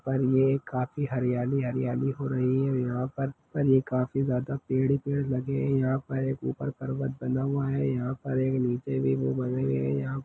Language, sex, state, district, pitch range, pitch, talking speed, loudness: Hindi, male, Chhattisgarh, Kabirdham, 125-135 Hz, 130 Hz, 185 wpm, -28 LUFS